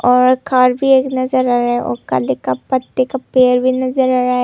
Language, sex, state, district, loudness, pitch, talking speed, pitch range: Hindi, female, Tripura, Unakoti, -15 LUFS, 255 Hz, 255 wpm, 250-260 Hz